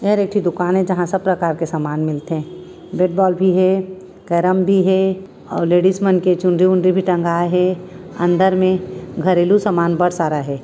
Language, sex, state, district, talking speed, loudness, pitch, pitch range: Chhattisgarhi, female, Chhattisgarh, Raigarh, 190 wpm, -17 LUFS, 185 Hz, 175-190 Hz